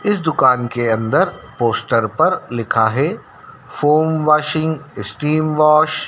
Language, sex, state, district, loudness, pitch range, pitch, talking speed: Hindi, male, Madhya Pradesh, Dhar, -16 LUFS, 120-160 Hz, 150 Hz, 110 wpm